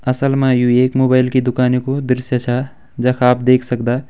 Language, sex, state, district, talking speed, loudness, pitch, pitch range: Hindi, male, Uttarakhand, Tehri Garhwal, 205 wpm, -15 LUFS, 125 Hz, 125-130 Hz